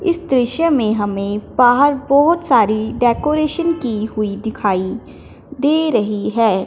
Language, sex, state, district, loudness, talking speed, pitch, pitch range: Hindi, male, Punjab, Fazilka, -16 LUFS, 125 wpm, 245 Hz, 215-300 Hz